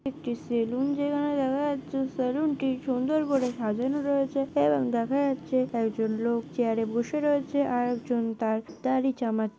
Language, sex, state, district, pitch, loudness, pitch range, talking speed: Bengali, female, West Bengal, Jhargram, 260 Hz, -28 LUFS, 235-280 Hz, 155 wpm